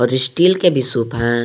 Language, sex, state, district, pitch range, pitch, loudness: Hindi, male, Jharkhand, Garhwa, 120-170 Hz, 125 Hz, -15 LUFS